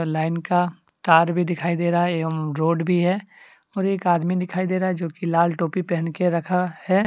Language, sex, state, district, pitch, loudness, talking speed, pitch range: Hindi, male, Jharkhand, Deoghar, 175 Hz, -22 LUFS, 230 wpm, 165-180 Hz